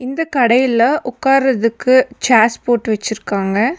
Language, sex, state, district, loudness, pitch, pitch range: Tamil, female, Tamil Nadu, Nilgiris, -15 LUFS, 245 Hz, 230-260 Hz